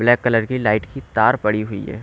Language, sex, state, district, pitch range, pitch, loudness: Hindi, male, Haryana, Rohtak, 105-120 Hz, 110 Hz, -19 LUFS